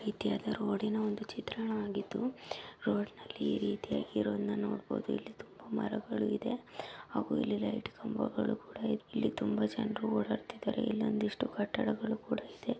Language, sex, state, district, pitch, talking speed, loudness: Kannada, female, Karnataka, Mysore, 205 Hz, 110 wpm, -36 LUFS